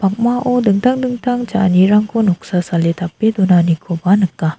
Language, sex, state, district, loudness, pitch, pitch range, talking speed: Garo, female, Meghalaya, South Garo Hills, -15 LUFS, 195 Hz, 175-230 Hz, 105 wpm